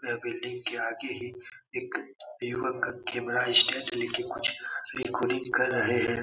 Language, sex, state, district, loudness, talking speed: Hindi, male, Uttar Pradesh, Etah, -29 LUFS, 165 wpm